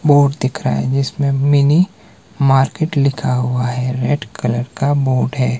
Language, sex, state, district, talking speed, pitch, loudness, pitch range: Hindi, male, Himachal Pradesh, Shimla, 160 wpm, 135 Hz, -16 LUFS, 125-145 Hz